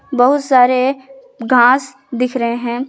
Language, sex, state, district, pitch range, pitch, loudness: Hindi, female, Jharkhand, Garhwa, 245-265 Hz, 255 Hz, -14 LUFS